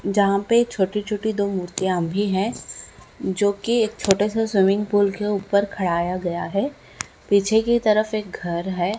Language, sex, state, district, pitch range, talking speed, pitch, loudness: Hindi, female, Maharashtra, Aurangabad, 190-215 Hz, 160 wpm, 200 Hz, -21 LUFS